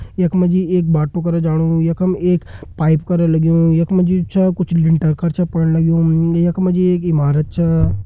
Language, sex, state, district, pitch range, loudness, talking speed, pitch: Hindi, male, Uttarakhand, Uttarkashi, 160-180 Hz, -15 LUFS, 210 wpm, 165 Hz